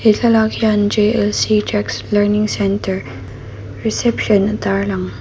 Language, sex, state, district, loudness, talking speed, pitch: Mizo, female, Mizoram, Aizawl, -16 LUFS, 115 wpm, 205 Hz